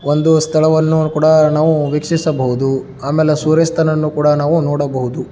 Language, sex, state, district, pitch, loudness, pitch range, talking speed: Kannada, male, Karnataka, Dharwad, 155 Hz, -14 LUFS, 145-160 Hz, 115 wpm